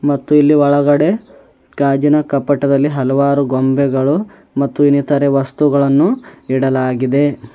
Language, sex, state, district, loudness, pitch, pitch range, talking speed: Kannada, male, Karnataka, Bidar, -14 LUFS, 140 Hz, 135-145 Hz, 85 wpm